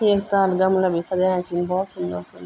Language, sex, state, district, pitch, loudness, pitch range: Garhwali, female, Uttarakhand, Tehri Garhwal, 185 Hz, -21 LUFS, 170-190 Hz